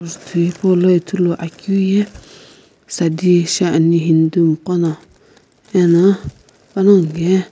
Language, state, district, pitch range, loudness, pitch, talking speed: Sumi, Nagaland, Kohima, 165-190 Hz, -15 LUFS, 175 Hz, 95 wpm